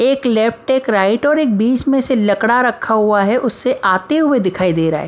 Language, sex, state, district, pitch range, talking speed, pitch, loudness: Hindi, female, Maharashtra, Mumbai Suburban, 200-260 Hz, 210 wpm, 230 Hz, -15 LUFS